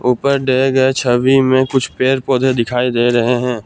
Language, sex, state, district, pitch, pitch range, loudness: Hindi, male, Assam, Kamrup Metropolitan, 130 Hz, 125-130 Hz, -14 LUFS